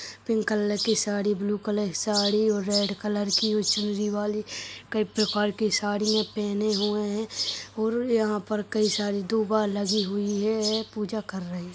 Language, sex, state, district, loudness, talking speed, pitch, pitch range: Hindi, male, Uttarakhand, Tehri Garhwal, -26 LUFS, 175 wpm, 210 Hz, 205-215 Hz